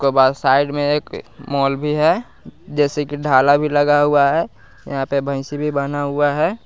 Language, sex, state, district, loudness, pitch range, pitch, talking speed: Hindi, male, Bihar, West Champaran, -17 LUFS, 140-145 Hz, 145 Hz, 200 wpm